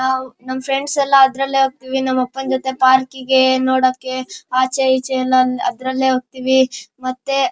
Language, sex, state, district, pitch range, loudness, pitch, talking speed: Kannada, male, Karnataka, Shimoga, 255-265 Hz, -17 LUFS, 260 Hz, 135 wpm